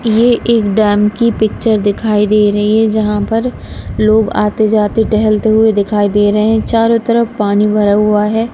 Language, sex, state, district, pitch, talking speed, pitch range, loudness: Hindi, female, Punjab, Kapurthala, 215 Hz, 185 wpm, 210-225 Hz, -12 LUFS